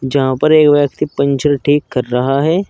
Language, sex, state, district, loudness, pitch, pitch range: Hindi, male, Uttar Pradesh, Saharanpur, -13 LUFS, 145 Hz, 135-150 Hz